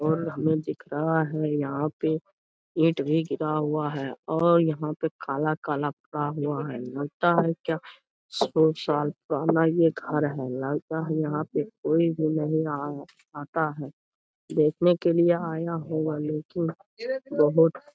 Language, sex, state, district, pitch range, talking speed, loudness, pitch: Hindi, male, Bihar, Jamui, 150-165 Hz, 155 wpm, -26 LUFS, 155 Hz